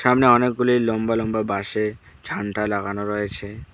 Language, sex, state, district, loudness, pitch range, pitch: Bengali, male, West Bengal, Alipurduar, -22 LUFS, 100-115 Hz, 105 Hz